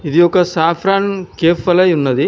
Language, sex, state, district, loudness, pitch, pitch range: Telugu, male, Telangana, Hyderabad, -14 LUFS, 175 Hz, 165-185 Hz